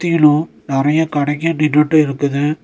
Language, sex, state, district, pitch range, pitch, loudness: Tamil, male, Tamil Nadu, Nilgiris, 145-160 Hz, 150 Hz, -15 LUFS